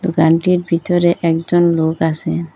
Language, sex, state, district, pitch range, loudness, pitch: Bengali, female, Assam, Hailakandi, 160-175 Hz, -15 LUFS, 165 Hz